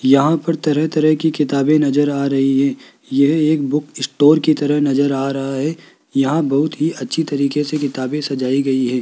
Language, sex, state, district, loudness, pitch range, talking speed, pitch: Hindi, male, Rajasthan, Jaipur, -17 LUFS, 135-155 Hz, 200 wpm, 145 Hz